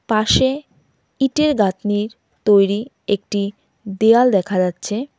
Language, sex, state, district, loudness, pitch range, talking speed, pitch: Bengali, female, West Bengal, Cooch Behar, -18 LUFS, 200-240 Hz, 90 wpm, 205 Hz